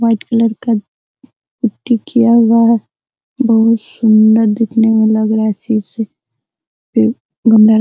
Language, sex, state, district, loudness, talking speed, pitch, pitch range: Hindi, female, Bihar, Araria, -13 LUFS, 125 wpm, 225 Hz, 220-230 Hz